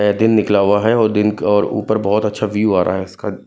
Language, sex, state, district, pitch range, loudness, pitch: Hindi, male, Punjab, Kapurthala, 100-110 Hz, -16 LUFS, 105 Hz